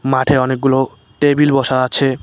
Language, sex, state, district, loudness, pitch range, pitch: Bengali, male, West Bengal, Cooch Behar, -15 LUFS, 130-140 Hz, 135 Hz